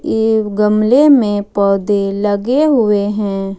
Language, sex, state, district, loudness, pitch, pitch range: Hindi, female, Jharkhand, Ranchi, -13 LUFS, 210 Hz, 200-220 Hz